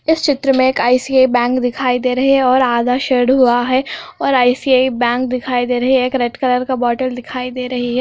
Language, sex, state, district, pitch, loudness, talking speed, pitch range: Hindi, female, Andhra Pradesh, Anantapur, 255 Hz, -15 LUFS, 230 wpm, 245-260 Hz